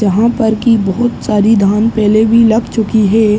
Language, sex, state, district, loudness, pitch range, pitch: Hindi, male, Uttar Pradesh, Ghazipur, -11 LUFS, 210-230 Hz, 220 Hz